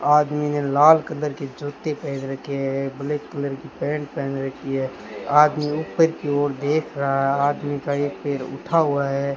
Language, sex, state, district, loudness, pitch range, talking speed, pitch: Hindi, male, Rajasthan, Bikaner, -22 LUFS, 140-150 Hz, 185 wpm, 145 Hz